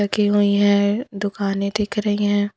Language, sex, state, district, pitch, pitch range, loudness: Hindi, female, Punjab, Pathankot, 205 Hz, 200-205 Hz, -20 LUFS